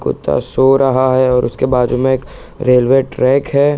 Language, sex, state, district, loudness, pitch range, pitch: Hindi, male, Bihar, East Champaran, -13 LUFS, 125-135 Hz, 130 Hz